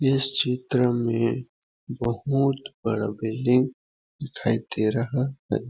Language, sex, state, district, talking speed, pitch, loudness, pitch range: Hindi, male, Chhattisgarh, Balrampur, 105 wpm, 125 Hz, -25 LUFS, 115-135 Hz